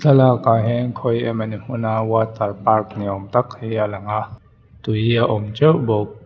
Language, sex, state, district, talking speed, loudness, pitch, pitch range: Mizo, male, Mizoram, Aizawl, 190 wpm, -19 LUFS, 110 Hz, 105-120 Hz